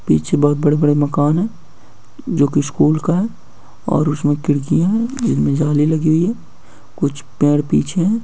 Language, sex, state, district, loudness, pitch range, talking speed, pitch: Hindi, male, Bihar, Samastipur, -17 LUFS, 145-170 Hz, 165 wpm, 150 Hz